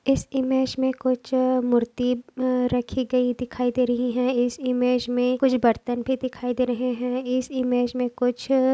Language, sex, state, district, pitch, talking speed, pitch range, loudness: Hindi, female, Maharashtra, Dhule, 250 Hz, 185 wpm, 245-255 Hz, -24 LUFS